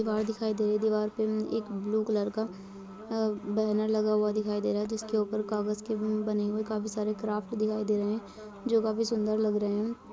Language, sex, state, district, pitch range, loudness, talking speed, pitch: Hindi, female, Uttar Pradesh, Budaun, 210-220 Hz, -30 LUFS, 245 wpm, 215 Hz